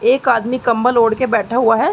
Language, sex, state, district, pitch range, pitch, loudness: Hindi, female, Uttar Pradesh, Gorakhpur, 230-255 Hz, 240 Hz, -15 LUFS